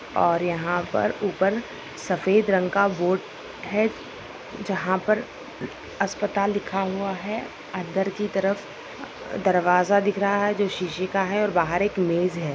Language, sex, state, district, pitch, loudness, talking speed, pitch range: Hindi, female, Rajasthan, Nagaur, 195 Hz, -24 LUFS, 150 wpm, 180-205 Hz